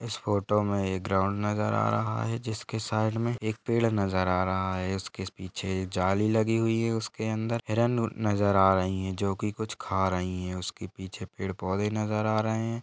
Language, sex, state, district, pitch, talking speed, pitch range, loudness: Hindi, male, Chhattisgarh, Balrampur, 105 Hz, 215 wpm, 95-110 Hz, -29 LUFS